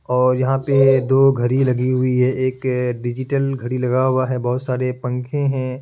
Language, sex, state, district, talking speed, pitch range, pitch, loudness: Hindi, male, Bihar, Kishanganj, 185 wpm, 125-135 Hz, 130 Hz, -18 LUFS